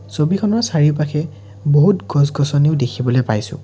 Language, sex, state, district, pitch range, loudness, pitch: Assamese, male, Assam, Sonitpur, 125-155 Hz, -16 LUFS, 145 Hz